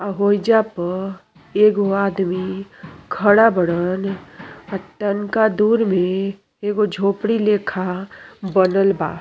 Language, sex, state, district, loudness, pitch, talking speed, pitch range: Bhojpuri, female, Uttar Pradesh, Deoria, -18 LUFS, 195 Hz, 105 wpm, 190-210 Hz